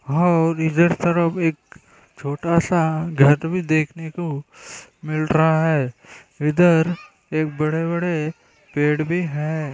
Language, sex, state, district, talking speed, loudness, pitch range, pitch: Hindi, male, Maharashtra, Dhule, 110 wpm, -20 LUFS, 150-170 Hz, 160 Hz